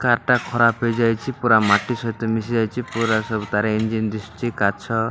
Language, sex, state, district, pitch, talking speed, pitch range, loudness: Odia, male, Odisha, Malkangiri, 115 Hz, 190 wpm, 110-120 Hz, -20 LUFS